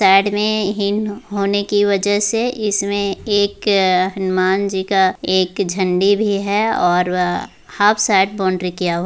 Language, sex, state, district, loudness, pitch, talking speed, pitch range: Hindi, female, Bihar, Muzaffarpur, -17 LUFS, 200 Hz, 160 wpm, 185-205 Hz